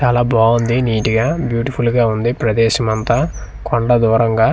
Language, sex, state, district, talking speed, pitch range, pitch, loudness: Telugu, male, Andhra Pradesh, Manyam, 130 wpm, 115-120 Hz, 115 Hz, -15 LUFS